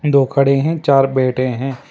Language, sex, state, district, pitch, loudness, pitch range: Hindi, male, Karnataka, Bangalore, 135 Hz, -15 LUFS, 130-140 Hz